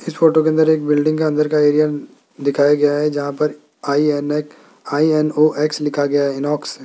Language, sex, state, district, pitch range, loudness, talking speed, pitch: Hindi, male, Rajasthan, Jaipur, 145-155 Hz, -17 LUFS, 185 wpm, 150 Hz